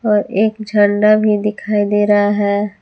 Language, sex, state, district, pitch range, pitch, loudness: Hindi, female, Jharkhand, Palamu, 205-215 Hz, 210 Hz, -14 LUFS